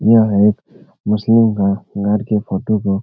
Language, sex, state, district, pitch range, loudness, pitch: Hindi, male, Bihar, Jahanabad, 100-110 Hz, -15 LUFS, 105 Hz